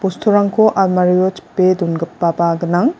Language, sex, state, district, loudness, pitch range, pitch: Garo, female, Meghalaya, West Garo Hills, -15 LUFS, 170-200 Hz, 185 Hz